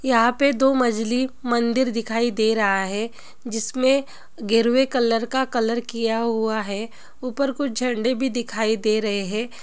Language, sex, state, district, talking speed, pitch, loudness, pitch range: Hindi, female, Bihar, Gopalganj, 160 wpm, 235 Hz, -22 LUFS, 225-255 Hz